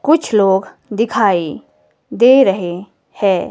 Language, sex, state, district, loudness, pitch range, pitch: Hindi, female, Himachal Pradesh, Shimla, -14 LUFS, 180-230 Hz, 195 Hz